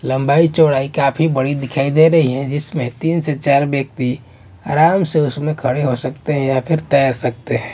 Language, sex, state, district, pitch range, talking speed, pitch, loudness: Hindi, male, Maharashtra, Washim, 130-155 Hz, 195 wpm, 140 Hz, -16 LUFS